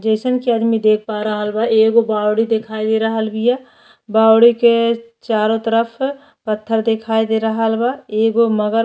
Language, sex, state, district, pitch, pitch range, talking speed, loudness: Bhojpuri, female, Uttar Pradesh, Deoria, 225 Hz, 220-230 Hz, 170 wpm, -16 LUFS